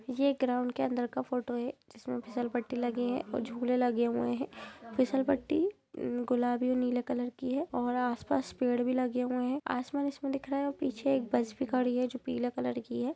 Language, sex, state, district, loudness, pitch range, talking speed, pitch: Hindi, female, Jharkhand, Jamtara, -33 LUFS, 245-270 Hz, 225 wpm, 250 Hz